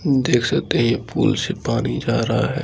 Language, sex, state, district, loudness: Hindi, male, Bihar, Saharsa, -20 LUFS